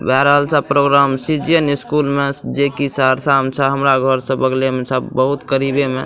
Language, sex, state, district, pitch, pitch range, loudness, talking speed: Maithili, male, Bihar, Madhepura, 140 Hz, 130-140 Hz, -15 LUFS, 220 wpm